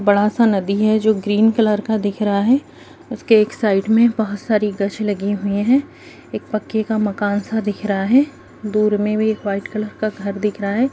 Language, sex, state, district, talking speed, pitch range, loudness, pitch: Hindi, female, Bihar, Kishanganj, 205 wpm, 205-220 Hz, -18 LUFS, 210 Hz